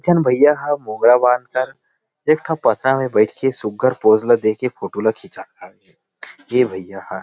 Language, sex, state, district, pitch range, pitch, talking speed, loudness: Chhattisgarhi, male, Chhattisgarh, Rajnandgaon, 110-145 Hz, 125 Hz, 200 wpm, -17 LUFS